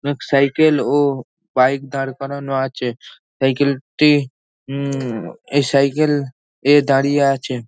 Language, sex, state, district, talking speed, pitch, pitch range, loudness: Bengali, male, West Bengal, North 24 Parganas, 115 wpm, 140 Hz, 135-145 Hz, -17 LUFS